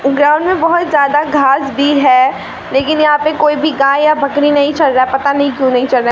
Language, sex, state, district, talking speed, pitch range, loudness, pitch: Hindi, female, Bihar, Katihar, 245 wpm, 270-300 Hz, -12 LUFS, 285 Hz